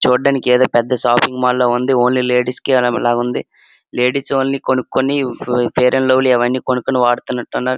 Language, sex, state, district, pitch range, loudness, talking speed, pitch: Telugu, male, Andhra Pradesh, Srikakulam, 125-130 Hz, -15 LUFS, 170 wpm, 125 Hz